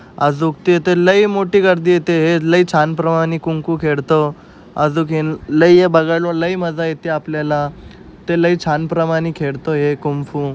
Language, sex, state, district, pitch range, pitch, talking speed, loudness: Marathi, male, Maharashtra, Aurangabad, 150-170 Hz, 165 Hz, 160 wpm, -15 LUFS